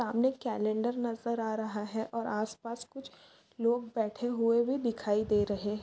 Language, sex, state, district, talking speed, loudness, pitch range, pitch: Hindi, female, Maharashtra, Aurangabad, 165 wpm, -32 LUFS, 215-240 Hz, 230 Hz